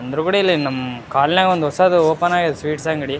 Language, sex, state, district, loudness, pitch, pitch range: Kannada, male, Karnataka, Raichur, -17 LUFS, 160 Hz, 140-175 Hz